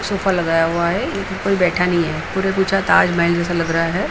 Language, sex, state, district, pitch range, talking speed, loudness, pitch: Hindi, female, Maharashtra, Mumbai Suburban, 170-190 Hz, 190 wpm, -18 LUFS, 180 Hz